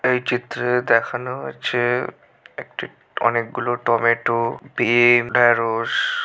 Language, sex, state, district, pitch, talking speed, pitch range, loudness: Bengali, male, West Bengal, Malda, 120 Hz, 85 wpm, 115-125 Hz, -19 LUFS